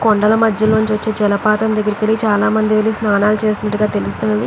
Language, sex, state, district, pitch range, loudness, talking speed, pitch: Telugu, female, Andhra Pradesh, Chittoor, 210-220 Hz, -15 LUFS, 160 wpm, 215 Hz